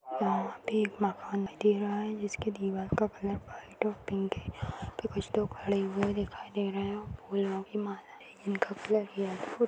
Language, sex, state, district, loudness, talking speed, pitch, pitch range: Kumaoni, female, Uttarakhand, Uttarkashi, -33 LUFS, 180 wpm, 200 Hz, 195-210 Hz